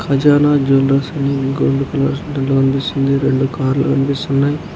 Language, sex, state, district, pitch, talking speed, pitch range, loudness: Telugu, male, Andhra Pradesh, Anantapur, 140 Hz, 125 wpm, 135-140 Hz, -15 LUFS